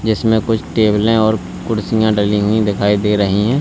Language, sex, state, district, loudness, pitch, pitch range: Hindi, male, Uttar Pradesh, Lalitpur, -15 LUFS, 105 Hz, 105-110 Hz